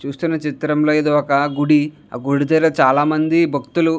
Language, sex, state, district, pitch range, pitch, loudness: Telugu, male, Andhra Pradesh, Chittoor, 145-160 Hz, 150 Hz, -17 LUFS